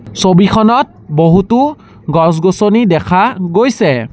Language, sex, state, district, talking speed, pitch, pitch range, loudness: Assamese, male, Assam, Sonitpur, 85 wpm, 185 Hz, 165-220 Hz, -11 LUFS